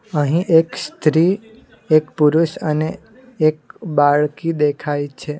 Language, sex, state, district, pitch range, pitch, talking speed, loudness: Gujarati, male, Gujarat, Valsad, 150-175 Hz, 155 Hz, 110 wpm, -18 LUFS